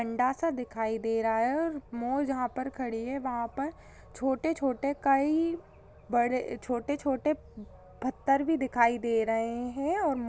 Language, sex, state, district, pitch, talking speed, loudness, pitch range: Hindi, female, Maharashtra, Sindhudurg, 255 Hz, 150 wpm, -30 LUFS, 235-280 Hz